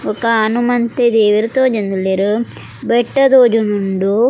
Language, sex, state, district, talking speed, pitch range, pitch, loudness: Tulu, female, Karnataka, Dakshina Kannada, 85 wpm, 210-240 Hz, 225 Hz, -14 LUFS